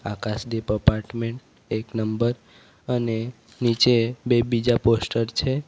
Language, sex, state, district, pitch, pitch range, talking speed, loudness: Gujarati, male, Gujarat, Valsad, 115 Hz, 110-120 Hz, 105 wpm, -23 LUFS